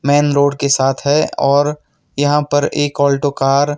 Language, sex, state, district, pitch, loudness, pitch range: Hindi, male, Himachal Pradesh, Shimla, 145 Hz, -15 LUFS, 140-145 Hz